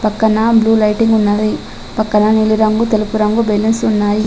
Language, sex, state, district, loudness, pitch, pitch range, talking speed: Telugu, female, Telangana, Adilabad, -13 LUFS, 215 Hz, 210-220 Hz, 140 wpm